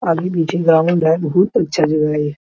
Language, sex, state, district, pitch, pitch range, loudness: Hindi, male, Bihar, Araria, 165 Hz, 155-175 Hz, -16 LUFS